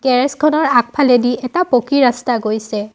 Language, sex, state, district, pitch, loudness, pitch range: Assamese, female, Assam, Sonitpur, 250 Hz, -15 LUFS, 240-275 Hz